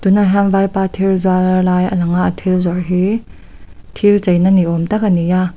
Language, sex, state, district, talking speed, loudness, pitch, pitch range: Mizo, female, Mizoram, Aizawl, 245 wpm, -14 LUFS, 185 Hz, 180-195 Hz